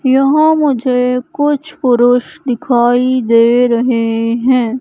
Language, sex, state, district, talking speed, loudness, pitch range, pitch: Hindi, female, Madhya Pradesh, Katni, 100 wpm, -12 LUFS, 240-270 Hz, 250 Hz